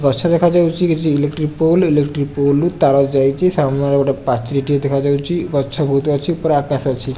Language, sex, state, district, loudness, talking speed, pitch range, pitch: Odia, male, Odisha, Nuapada, -16 LUFS, 150 wpm, 140-160 Hz, 145 Hz